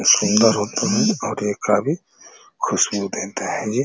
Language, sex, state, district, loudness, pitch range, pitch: Hindi, male, Uttar Pradesh, Ghazipur, -20 LUFS, 105-140 Hz, 110 Hz